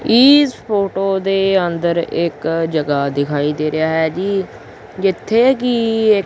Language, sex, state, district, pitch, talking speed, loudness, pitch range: Punjabi, male, Punjab, Kapurthala, 190 Hz, 125 wpm, -16 LUFS, 160-215 Hz